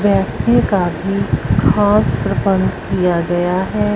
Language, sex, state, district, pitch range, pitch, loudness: Hindi, female, Punjab, Fazilka, 175-200 Hz, 190 Hz, -16 LUFS